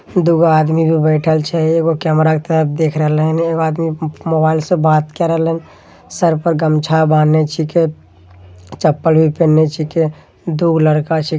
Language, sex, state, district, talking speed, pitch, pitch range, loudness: Angika, male, Bihar, Begusarai, 165 wpm, 160 Hz, 155-165 Hz, -14 LUFS